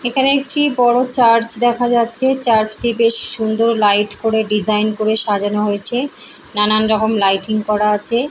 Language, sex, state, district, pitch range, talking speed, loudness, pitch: Bengali, female, West Bengal, Purulia, 210-240 Hz, 150 wpm, -14 LUFS, 220 Hz